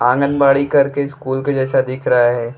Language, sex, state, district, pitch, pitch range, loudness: Bhojpuri, male, Uttar Pradesh, Deoria, 135 Hz, 125-140 Hz, -16 LUFS